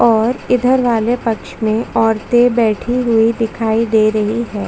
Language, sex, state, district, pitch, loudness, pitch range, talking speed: Hindi, female, Chhattisgarh, Bastar, 230 Hz, -15 LUFS, 220-240 Hz, 155 wpm